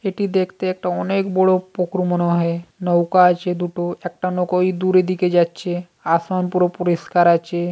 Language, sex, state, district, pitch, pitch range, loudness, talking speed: Bengali, female, West Bengal, Paschim Medinipur, 180 Hz, 175-185 Hz, -19 LUFS, 165 wpm